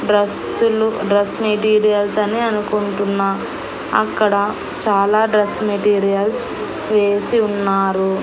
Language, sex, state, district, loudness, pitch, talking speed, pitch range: Telugu, female, Andhra Pradesh, Annamaya, -17 LUFS, 205 Hz, 80 wpm, 200-215 Hz